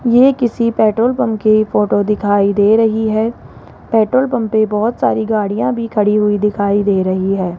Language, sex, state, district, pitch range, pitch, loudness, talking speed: Hindi, female, Rajasthan, Jaipur, 205-230 Hz, 215 Hz, -14 LUFS, 180 wpm